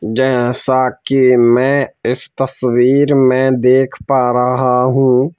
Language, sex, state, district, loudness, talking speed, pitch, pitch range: Hindi, male, Madhya Pradesh, Bhopal, -13 LUFS, 110 wpm, 130 Hz, 125-135 Hz